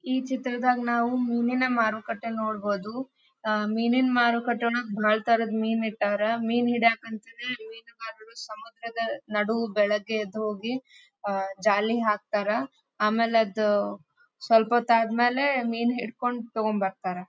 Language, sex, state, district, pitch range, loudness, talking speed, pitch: Kannada, female, Karnataka, Dharwad, 215-240 Hz, -26 LUFS, 120 wpm, 230 Hz